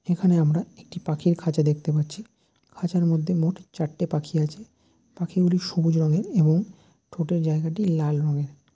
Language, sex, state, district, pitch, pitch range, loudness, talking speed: Bengali, male, West Bengal, Dakshin Dinajpur, 165 Hz, 155-180 Hz, -24 LUFS, 155 wpm